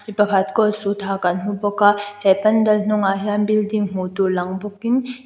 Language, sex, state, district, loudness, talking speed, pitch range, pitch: Mizo, female, Mizoram, Aizawl, -19 LUFS, 205 wpm, 195-215 Hz, 205 Hz